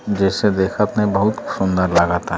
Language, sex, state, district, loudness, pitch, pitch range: Bhojpuri, male, Uttar Pradesh, Deoria, -18 LUFS, 100 Hz, 95-105 Hz